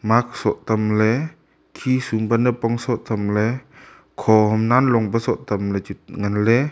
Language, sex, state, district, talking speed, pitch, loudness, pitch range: Wancho, male, Arunachal Pradesh, Longding, 170 wpm, 115 Hz, -20 LUFS, 105-125 Hz